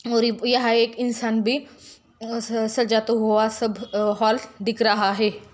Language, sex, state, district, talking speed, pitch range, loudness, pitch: Hindi, female, Jharkhand, Jamtara, 140 wpm, 220-235 Hz, -22 LUFS, 230 Hz